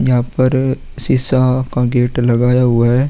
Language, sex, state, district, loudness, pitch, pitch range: Hindi, male, Uttar Pradesh, Jalaun, -14 LUFS, 125 Hz, 125-130 Hz